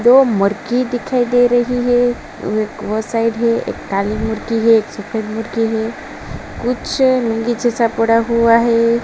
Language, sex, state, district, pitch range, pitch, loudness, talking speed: Hindi, female, Uttar Pradesh, Jalaun, 220-245 Hz, 230 Hz, -16 LUFS, 155 wpm